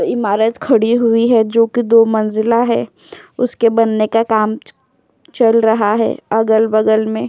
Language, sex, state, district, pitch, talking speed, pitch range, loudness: Hindi, female, Uttar Pradesh, Jyotiba Phule Nagar, 225 Hz, 150 wpm, 220-230 Hz, -14 LUFS